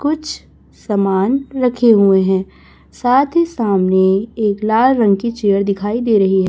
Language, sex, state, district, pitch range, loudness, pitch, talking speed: Hindi, male, Chhattisgarh, Raipur, 195-245 Hz, -15 LUFS, 215 Hz, 150 wpm